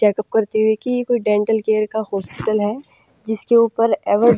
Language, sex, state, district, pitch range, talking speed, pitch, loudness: Hindi, female, Punjab, Pathankot, 210-230 Hz, 190 wpm, 220 Hz, -18 LUFS